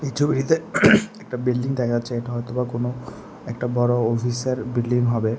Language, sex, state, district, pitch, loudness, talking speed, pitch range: Bengali, male, Tripura, West Tripura, 125 Hz, -22 LUFS, 135 wpm, 120-135 Hz